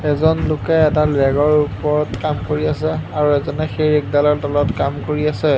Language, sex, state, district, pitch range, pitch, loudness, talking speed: Assamese, male, Assam, Hailakandi, 145-150 Hz, 150 Hz, -17 LUFS, 170 wpm